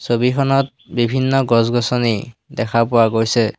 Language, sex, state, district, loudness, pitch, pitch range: Assamese, male, Assam, Hailakandi, -17 LUFS, 120 Hz, 115-130 Hz